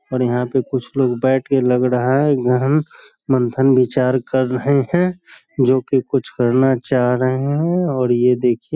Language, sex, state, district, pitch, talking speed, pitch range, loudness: Hindi, male, Bihar, Sitamarhi, 130 Hz, 200 wpm, 125-135 Hz, -17 LUFS